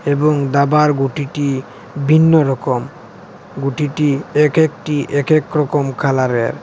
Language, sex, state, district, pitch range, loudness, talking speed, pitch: Bengali, male, Assam, Hailakandi, 140-150 Hz, -16 LUFS, 110 wpm, 145 Hz